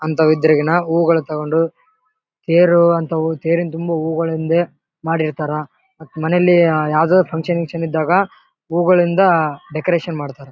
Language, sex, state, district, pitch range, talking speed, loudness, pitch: Kannada, male, Karnataka, Bellary, 160-175 Hz, 130 wpm, -16 LUFS, 165 Hz